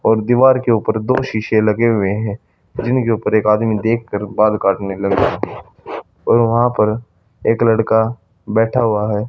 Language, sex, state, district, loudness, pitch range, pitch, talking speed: Hindi, male, Haryana, Charkhi Dadri, -16 LUFS, 105-115 Hz, 110 Hz, 170 wpm